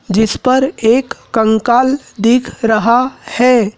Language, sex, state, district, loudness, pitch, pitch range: Hindi, male, Madhya Pradesh, Dhar, -13 LUFS, 240 Hz, 220-255 Hz